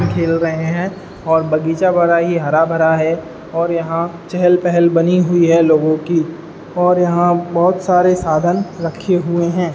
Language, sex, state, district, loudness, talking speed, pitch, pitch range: Hindi, male, Uttar Pradesh, Ghazipur, -15 LUFS, 160 wpm, 170 Hz, 165-175 Hz